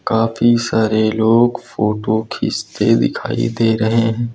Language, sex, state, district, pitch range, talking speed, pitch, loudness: Hindi, male, Uttar Pradesh, Lucknow, 110-115 Hz, 125 wpm, 115 Hz, -16 LUFS